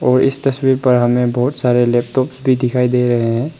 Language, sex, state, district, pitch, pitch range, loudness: Hindi, male, Arunachal Pradesh, Papum Pare, 125 Hz, 120-130 Hz, -15 LUFS